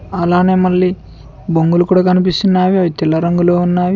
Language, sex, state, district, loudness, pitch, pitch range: Telugu, male, Telangana, Mahabubabad, -13 LUFS, 180 Hz, 175-185 Hz